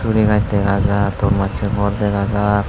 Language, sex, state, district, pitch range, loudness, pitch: Chakma, male, Tripura, Unakoti, 100-105 Hz, -17 LUFS, 100 Hz